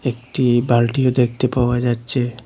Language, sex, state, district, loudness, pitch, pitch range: Bengali, male, Assam, Hailakandi, -18 LUFS, 125 Hz, 120-125 Hz